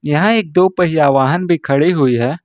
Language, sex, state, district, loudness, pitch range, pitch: Hindi, male, Jharkhand, Ranchi, -14 LUFS, 140-180 Hz, 160 Hz